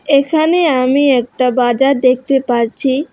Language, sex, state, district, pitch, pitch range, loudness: Bengali, female, West Bengal, Alipurduar, 265 Hz, 250-280 Hz, -13 LUFS